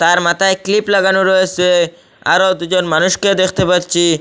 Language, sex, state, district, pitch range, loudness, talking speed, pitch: Bengali, male, Assam, Hailakandi, 175-190 Hz, -13 LUFS, 145 wpm, 185 Hz